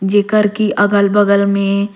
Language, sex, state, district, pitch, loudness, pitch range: Surgujia, female, Chhattisgarh, Sarguja, 205 Hz, -13 LUFS, 200-205 Hz